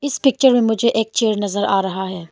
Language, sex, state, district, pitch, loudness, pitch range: Hindi, female, Arunachal Pradesh, Longding, 220 Hz, -17 LUFS, 195-245 Hz